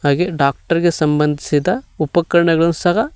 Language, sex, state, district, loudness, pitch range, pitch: Kannada, male, Karnataka, Koppal, -16 LUFS, 150-175 Hz, 170 Hz